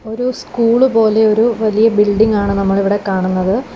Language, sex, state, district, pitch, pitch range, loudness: Malayalam, female, Kerala, Kollam, 215 Hz, 200-230 Hz, -14 LUFS